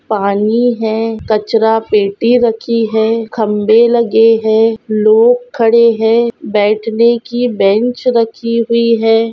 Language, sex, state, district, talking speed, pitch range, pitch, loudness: Hindi, female, Rajasthan, Nagaur, 115 wpm, 220-235 Hz, 225 Hz, -12 LUFS